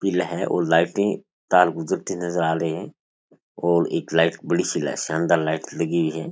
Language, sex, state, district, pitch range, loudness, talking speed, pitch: Rajasthani, male, Rajasthan, Churu, 80-90 Hz, -22 LUFS, 200 wpm, 85 Hz